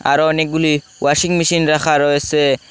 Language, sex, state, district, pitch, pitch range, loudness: Bengali, male, Assam, Hailakandi, 155 Hz, 145-160 Hz, -15 LUFS